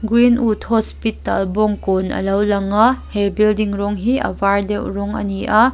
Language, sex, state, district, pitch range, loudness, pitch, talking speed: Mizo, female, Mizoram, Aizawl, 200-220 Hz, -17 LUFS, 210 Hz, 200 wpm